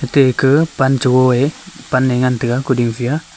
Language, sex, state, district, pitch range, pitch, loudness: Wancho, male, Arunachal Pradesh, Longding, 125-135 Hz, 130 Hz, -15 LUFS